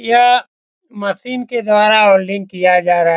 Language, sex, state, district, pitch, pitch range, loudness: Hindi, male, Bihar, Saran, 210 Hz, 190-240 Hz, -13 LUFS